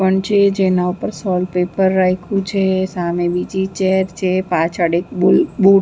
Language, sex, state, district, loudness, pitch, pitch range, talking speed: Gujarati, female, Maharashtra, Mumbai Suburban, -17 LUFS, 190 Hz, 180-195 Hz, 165 wpm